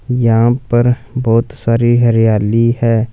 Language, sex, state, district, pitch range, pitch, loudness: Hindi, male, Punjab, Fazilka, 115-120 Hz, 115 Hz, -13 LUFS